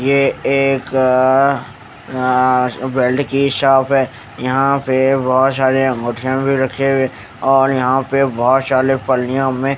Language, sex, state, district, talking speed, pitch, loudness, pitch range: Hindi, male, Haryana, Charkhi Dadri, 145 wpm, 130 Hz, -15 LUFS, 130-135 Hz